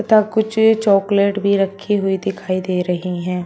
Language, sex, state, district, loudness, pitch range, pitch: Hindi, female, Uttar Pradesh, Shamli, -17 LUFS, 185-210 Hz, 200 Hz